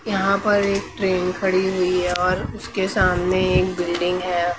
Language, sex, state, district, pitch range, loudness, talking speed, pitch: Hindi, female, Maharashtra, Mumbai Suburban, 180-195 Hz, -20 LUFS, 170 wpm, 185 Hz